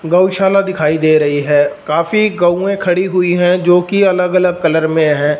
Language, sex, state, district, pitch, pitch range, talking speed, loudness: Hindi, male, Punjab, Fazilka, 175 Hz, 160-185 Hz, 180 wpm, -13 LUFS